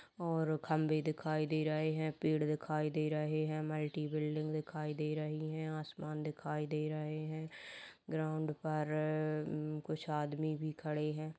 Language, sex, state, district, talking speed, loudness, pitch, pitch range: Hindi, female, Chhattisgarh, Kabirdham, 155 wpm, -38 LUFS, 155 Hz, 150-155 Hz